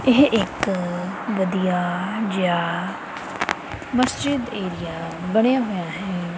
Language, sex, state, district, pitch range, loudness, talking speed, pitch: Punjabi, female, Punjab, Kapurthala, 180-225 Hz, -23 LUFS, 85 wpm, 190 Hz